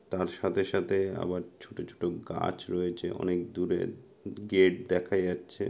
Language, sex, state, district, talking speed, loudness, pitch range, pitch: Bengali, male, West Bengal, Malda, 145 wpm, -31 LUFS, 90-95 Hz, 90 Hz